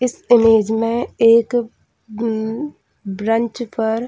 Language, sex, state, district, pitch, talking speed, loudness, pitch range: Hindi, female, Chhattisgarh, Bilaspur, 230 Hz, 105 wpm, -17 LUFS, 220-240 Hz